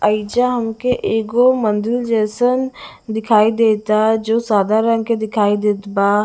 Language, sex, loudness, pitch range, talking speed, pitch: Bhojpuri, female, -16 LUFS, 210-235 Hz, 145 wpm, 220 Hz